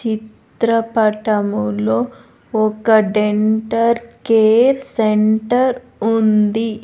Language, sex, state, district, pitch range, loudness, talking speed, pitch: Telugu, female, Andhra Pradesh, Sri Satya Sai, 215-230 Hz, -16 LUFS, 55 wpm, 220 Hz